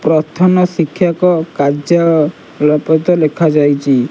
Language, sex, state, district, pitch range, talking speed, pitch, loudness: Odia, male, Odisha, Nuapada, 150-175 Hz, 75 wpm, 160 Hz, -12 LUFS